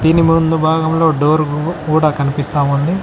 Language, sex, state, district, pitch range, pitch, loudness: Telugu, male, Telangana, Mahabubabad, 145-160 Hz, 155 Hz, -14 LUFS